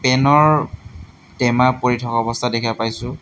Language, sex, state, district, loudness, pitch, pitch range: Assamese, male, Assam, Hailakandi, -17 LUFS, 120 Hz, 115-130 Hz